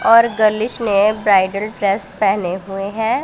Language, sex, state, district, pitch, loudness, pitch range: Hindi, female, Punjab, Pathankot, 205 Hz, -16 LUFS, 195-220 Hz